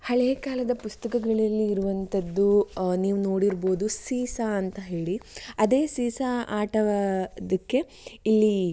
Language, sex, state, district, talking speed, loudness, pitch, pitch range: Kannada, female, Karnataka, Shimoga, 80 wpm, -26 LUFS, 215 Hz, 195-240 Hz